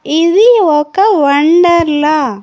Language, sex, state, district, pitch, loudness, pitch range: Telugu, female, Andhra Pradesh, Annamaya, 320 Hz, -9 LUFS, 295-360 Hz